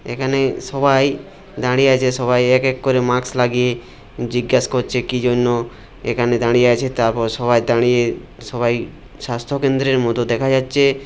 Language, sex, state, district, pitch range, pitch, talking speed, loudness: Bengali, male, West Bengal, Purulia, 120-130 Hz, 125 Hz, 145 wpm, -17 LUFS